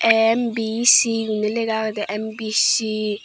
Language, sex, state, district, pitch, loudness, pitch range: Chakma, female, Tripura, Dhalai, 220 Hz, -19 LUFS, 215-225 Hz